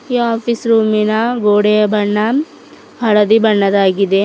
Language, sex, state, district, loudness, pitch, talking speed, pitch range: Kannada, female, Karnataka, Bidar, -13 LUFS, 215 Hz, 85 wpm, 210-230 Hz